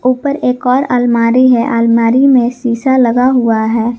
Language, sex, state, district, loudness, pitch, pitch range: Hindi, female, Jharkhand, Garhwa, -11 LUFS, 245 Hz, 235-255 Hz